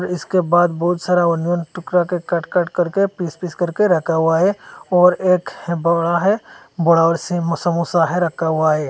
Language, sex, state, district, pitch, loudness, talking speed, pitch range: Hindi, male, Assam, Hailakandi, 175 Hz, -17 LUFS, 180 wpm, 170-180 Hz